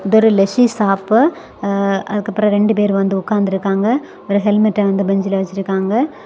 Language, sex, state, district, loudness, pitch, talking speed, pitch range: Tamil, female, Tamil Nadu, Kanyakumari, -16 LUFS, 205 Hz, 145 wpm, 195-215 Hz